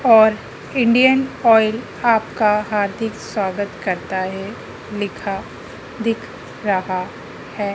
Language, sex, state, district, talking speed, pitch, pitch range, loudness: Hindi, female, Madhya Pradesh, Dhar, 95 wpm, 210 Hz, 195-225 Hz, -19 LUFS